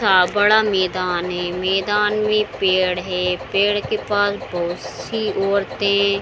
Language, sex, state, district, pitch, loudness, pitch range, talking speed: Hindi, female, Bihar, Saran, 195 Hz, -19 LUFS, 180-205 Hz, 145 wpm